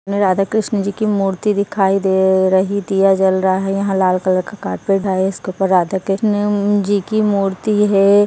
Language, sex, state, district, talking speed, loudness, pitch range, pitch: Hindi, female, Maharashtra, Solapur, 190 wpm, -16 LUFS, 190-205 Hz, 195 Hz